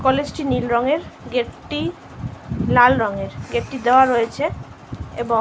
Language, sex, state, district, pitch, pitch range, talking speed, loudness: Bengali, female, West Bengal, Malda, 250 Hz, 235-265 Hz, 145 wpm, -20 LUFS